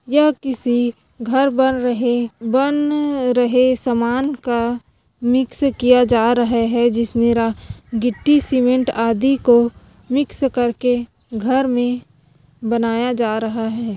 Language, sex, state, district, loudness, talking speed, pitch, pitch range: Hindi, female, Chhattisgarh, Korba, -17 LUFS, 115 wpm, 245 Hz, 235-260 Hz